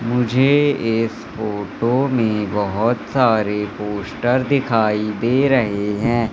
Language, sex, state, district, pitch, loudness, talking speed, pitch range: Hindi, male, Madhya Pradesh, Katni, 115 Hz, -19 LUFS, 105 wpm, 105-125 Hz